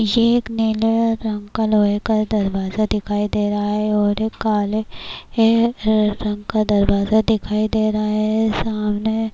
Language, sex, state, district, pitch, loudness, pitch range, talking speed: Urdu, female, Bihar, Kishanganj, 215 Hz, -19 LUFS, 210-220 Hz, 140 wpm